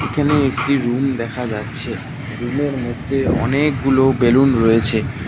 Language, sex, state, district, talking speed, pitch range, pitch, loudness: Bengali, male, West Bengal, Cooch Behar, 125 wpm, 120-135 Hz, 130 Hz, -17 LUFS